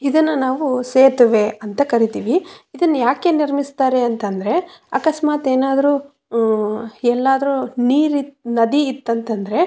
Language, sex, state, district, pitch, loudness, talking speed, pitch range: Kannada, female, Karnataka, Raichur, 265 Hz, -17 LUFS, 105 wpm, 235-290 Hz